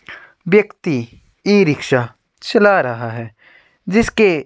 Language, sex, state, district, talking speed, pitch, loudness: Hindi, male, Uttar Pradesh, Jyotiba Phule Nagar, 95 wpm, 150 Hz, -16 LUFS